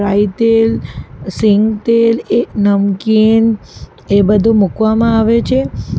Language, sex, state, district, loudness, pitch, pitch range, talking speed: Gujarati, female, Gujarat, Valsad, -12 LUFS, 210 Hz, 200-225 Hz, 100 wpm